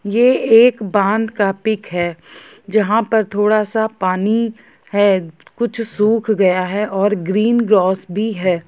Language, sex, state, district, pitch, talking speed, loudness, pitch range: Hindi, female, Jharkhand, Sahebganj, 210 Hz, 145 wpm, -16 LUFS, 190-220 Hz